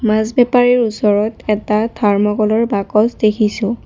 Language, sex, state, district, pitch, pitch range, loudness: Assamese, female, Assam, Kamrup Metropolitan, 215 Hz, 210-230 Hz, -15 LUFS